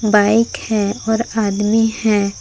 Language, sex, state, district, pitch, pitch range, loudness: Hindi, female, Jharkhand, Palamu, 215 Hz, 205-225 Hz, -16 LUFS